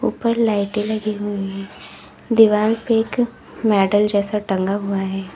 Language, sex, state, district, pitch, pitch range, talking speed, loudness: Hindi, female, Uttar Pradesh, Lalitpur, 210 Hz, 200-225 Hz, 145 wpm, -19 LUFS